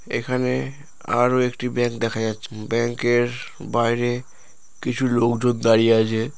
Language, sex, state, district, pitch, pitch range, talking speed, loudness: Bengali, female, West Bengal, Purulia, 120 Hz, 115-125 Hz, 120 wpm, -21 LUFS